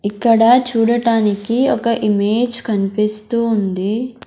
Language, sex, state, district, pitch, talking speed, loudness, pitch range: Telugu, female, Andhra Pradesh, Sri Satya Sai, 225 Hz, 85 wpm, -15 LUFS, 210-235 Hz